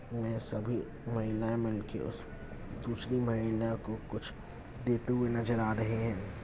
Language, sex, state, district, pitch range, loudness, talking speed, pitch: Hindi, male, Bihar, Jamui, 110-115 Hz, -35 LUFS, 140 wpm, 115 Hz